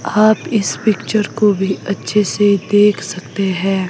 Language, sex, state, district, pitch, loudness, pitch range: Hindi, female, Himachal Pradesh, Shimla, 200 Hz, -15 LUFS, 190-210 Hz